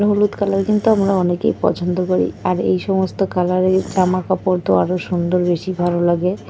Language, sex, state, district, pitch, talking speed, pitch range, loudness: Bengali, female, West Bengal, North 24 Parganas, 185 Hz, 185 wpm, 180-195 Hz, -18 LUFS